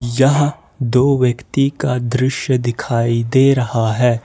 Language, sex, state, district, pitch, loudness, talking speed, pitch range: Hindi, male, Jharkhand, Ranchi, 125 Hz, -16 LUFS, 125 wpm, 120-135 Hz